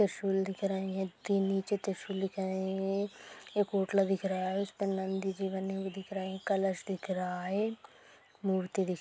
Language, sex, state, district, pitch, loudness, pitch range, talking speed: Hindi, male, Maharashtra, Nagpur, 195 Hz, -34 LUFS, 190-195 Hz, 195 wpm